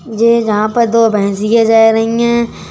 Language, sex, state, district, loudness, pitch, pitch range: Hindi, female, Uttar Pradesh, Budaun, -11 LUFS, 225 Hz, 220-230 Hz